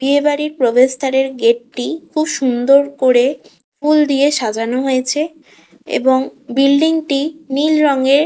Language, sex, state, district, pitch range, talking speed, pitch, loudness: Bengali, female, West Bengal, Kolkata, 260-300 Hz, 130 wpm, 275 Hz, -15 LUFS